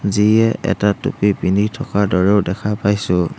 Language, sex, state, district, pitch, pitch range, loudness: Assamese, male, Assam, Hailakandi, 105 Hz, 95-105 Hz, -17 LUFS